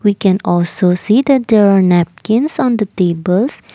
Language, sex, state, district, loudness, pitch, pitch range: English, female, Assam, Kamrup Metropolitan, -13 LUFS, 200 Hz, 180-230 Hz